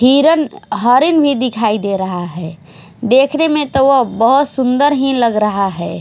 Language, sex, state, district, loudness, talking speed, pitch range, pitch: Hindi, female, Odisha, Khordha, -13 LUFS, 170 wpm, 200-275 Hz, 250 Hz